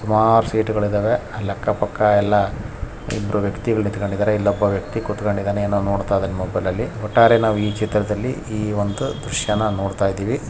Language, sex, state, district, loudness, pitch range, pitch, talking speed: Kannada, male, Karnataka, Raichur, -20 LUFS, 100-110 Hz, 105 Hz, 150 wpm